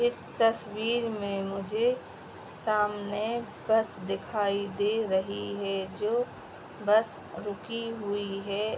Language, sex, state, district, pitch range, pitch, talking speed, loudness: Hindi, female, Uttar Pradesh, Hamirpur, 200-225 Hz, 210 Hz, 105 wpm, -30 LUFS